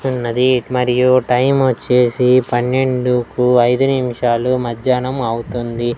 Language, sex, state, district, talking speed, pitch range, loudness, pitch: Telugu, male, Andhra Pradesh, Annamaya, 90 wpm, 120-130 Hz, -15 LUFS, 125 Hz